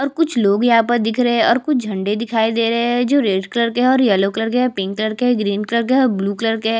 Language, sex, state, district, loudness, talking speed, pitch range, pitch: Hindi, female, Chhattisgarh, Jashpur, -17 LUFS, 315 wpm, 210-245 Hz, 230 Hz